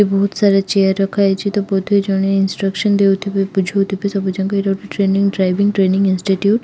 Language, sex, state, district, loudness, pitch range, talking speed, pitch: Odia, female, Odisha, Khordha, -16 LUFS, 195-200 Hz, 170 wpm, 195 Hz